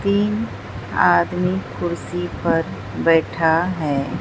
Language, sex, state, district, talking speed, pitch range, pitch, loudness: Hindi, female, Bihar, Katihar, 85 wpm, 140-180 Hz, 165 Hz, -20 LUFS